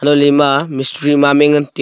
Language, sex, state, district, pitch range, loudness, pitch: Wancho, male, Arunachal Pradesh, Longding, 140-145 Hz, -12 LUFS, 145 Hz